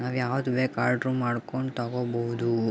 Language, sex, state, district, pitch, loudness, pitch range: Kannada, male, Karnataka, Mysore, 125 Hz, -28 LUFS, 120-130 Hz